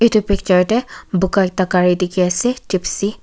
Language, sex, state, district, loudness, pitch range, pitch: Nagamese, female, Nagaland, Kohima, -17 LUFS, 180-210 Hz, 190 Hz